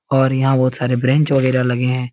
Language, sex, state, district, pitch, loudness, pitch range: Hindi, male, Uttar Pradesh, Etah, 130 Hz, -16 LUFS, 125-135 Hz